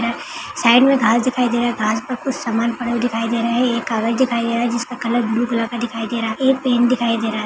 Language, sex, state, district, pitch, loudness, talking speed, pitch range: Hindi, female, Maharashtra, Nagpur, 235 Hz, -18 LUFS, 300 wpm, 230-245 Hz